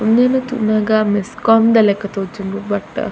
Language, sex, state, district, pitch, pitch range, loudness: Tulu, female, Karnataka, Dakshina Kannada, 215 Hz, 200-225 Hz, -16 LUFS